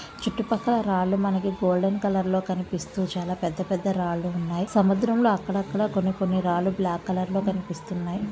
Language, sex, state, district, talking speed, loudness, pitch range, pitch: Telugu, female, Andhra Pradesh, Visakhapatnam, 160 wpm, -25 LUFS, 180-200 Hz, 190 Hz